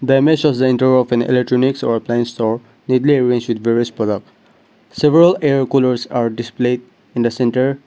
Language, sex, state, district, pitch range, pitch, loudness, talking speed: English, male, Nagaland, Dimapur, 120-135 Hz, 125 Hz, -16 LUFS, 190 wpm